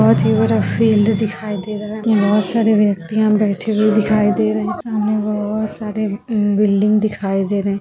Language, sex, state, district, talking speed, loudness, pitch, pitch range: Hindi, female, Andhra Pradesh, Chittoor, 200 wpm, -17 LUFS, 210 Hz, 200-215 Hz